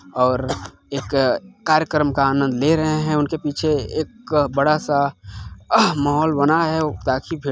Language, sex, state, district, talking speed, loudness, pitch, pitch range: Hindi, male, Chhattisgarh, Balrampur, 130 wpm, -19 LUFS, 145 Hz, 135-155 Hz